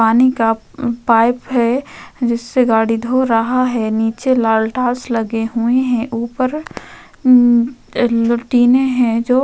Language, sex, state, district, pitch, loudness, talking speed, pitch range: Hindi, female, Uttar Pradesh, Varanasi, 240 Hz, -15 LUFS, 135 wpm, 230-255 Hz